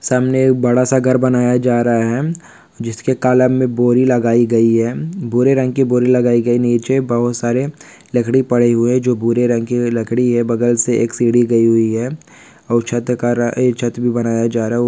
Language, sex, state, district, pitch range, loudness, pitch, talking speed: Hindi, male, Maharashtra, Pune, 120-125 Hz, -15 LUFS, 120 Hz, 200 wpm